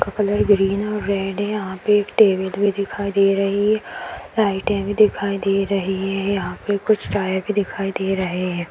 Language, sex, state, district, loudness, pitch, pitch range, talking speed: Kumaoni, female, Uttarakhand, Tehri Garhwal, -20 LUFS, 200 Hz, 195-205 Hz, 205 wpm